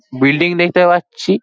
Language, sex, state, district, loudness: Bengali, male, West Bengal, Paschim Medinipur, -13 LUFS